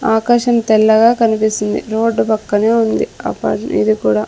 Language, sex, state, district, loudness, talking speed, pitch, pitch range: Telugu, female, Andhra Pradesh, Sri Satya Sai, -14 LUFS, 125 wpm, 220 Hz, 215-230 Hz